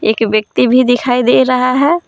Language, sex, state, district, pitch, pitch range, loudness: Hindi, female, Jharkhand, Palamu, 250 Hz, 235-255 Hz, -12 LUFS